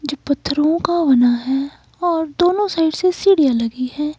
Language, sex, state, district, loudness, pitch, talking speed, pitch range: Hindi, female, Himachal Pradesh, Shimla, -17 LUFS, 300 Hz, 170 wpm, 275-350 Hz